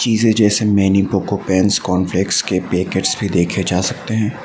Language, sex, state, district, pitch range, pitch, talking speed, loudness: Hindi, male, Assam, Sonitpur, 95-105 Hz, 95 Hz, 190 wpm, -16 LUFS